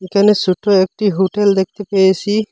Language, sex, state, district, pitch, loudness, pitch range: Bengali, male, Assam, Hailakandi, 200 Hz, -14 LUFS, 190-205 Hz